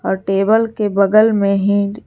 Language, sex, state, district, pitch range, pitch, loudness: Hindi, female, Jharkhand, Garhwa, 200-215 Hz, 200 Hz, -15 LUFS